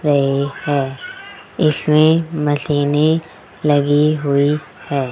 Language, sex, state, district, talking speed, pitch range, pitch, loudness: Hindi, male, Rajasthan, Jaipur, 80 wpm, 145-155 Hz, 150 Hz, -17 LUFS